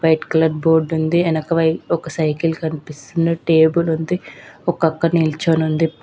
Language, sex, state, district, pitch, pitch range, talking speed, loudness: Telugu, female, Andhra Pradesh, Visakhapatnam, 160 Hz, 160-165 Hz, 140 wpm, -18 LUFS